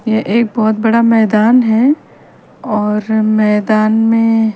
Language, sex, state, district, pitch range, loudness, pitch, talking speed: Hindi, female, Haryana, Charkhi Dadri, 215-230 Hz, -12 LUFS, 220 Hz, 130 wpm